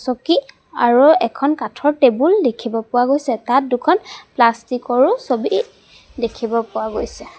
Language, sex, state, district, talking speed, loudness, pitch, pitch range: Assamese, female, Assam, Sonitpur, 130 wpm, -17 LUFS, 250 Hz, 235-295 Hz